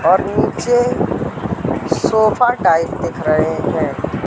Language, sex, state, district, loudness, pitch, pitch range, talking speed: Hindi, male, Madhya Pradesh, Katni, -16 LUFS, 210 Hz, 160-245 Hz, 100 wpm